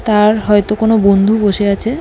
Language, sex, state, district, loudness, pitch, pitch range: Bengali, female, West Bengal, North 24 Parganas, -12 LUFS, 210 Hz, 205-220 Hz